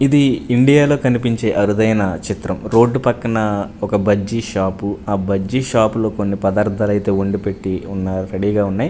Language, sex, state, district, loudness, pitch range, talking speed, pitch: Telugu, male, Andhra Pradesh, Manyam, -17 LUFS, 100-115 Hz, 155 wpm, 105 Hz